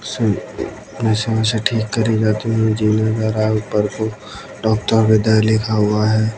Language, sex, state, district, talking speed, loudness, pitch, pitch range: Hindi, male, Haryana, Jhajjar, 150 wpm, -17 LUFS, 110 Hz, 105-110 Hz